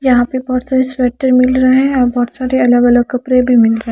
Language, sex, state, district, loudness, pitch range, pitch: Hindi, female, Haryana, Charkhi Dadri, -12 LUFS, 245-260 Hz, 250 Hz